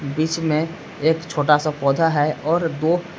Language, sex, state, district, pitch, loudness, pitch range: Hindi, male, Jharkhand, Palamu, 155 Hz, -20 LUFS, 150-165 Hz